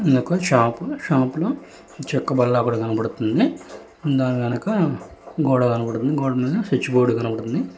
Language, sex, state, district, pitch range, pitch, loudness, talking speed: Telugu, male, Telangana, Hyderabad, 120-145 Hz, 130 Hz, -21 LUFS, 130 wpm